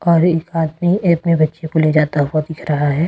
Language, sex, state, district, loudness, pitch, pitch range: Hindi, female, Delhi, New Delhi, -16 LUFS, 160 Hz, 155-170 Hz